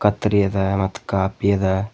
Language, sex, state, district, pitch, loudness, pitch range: Kannada, male, Karnataka, Bidar, 100 Hz, -20 LUFS, 95-100 Hz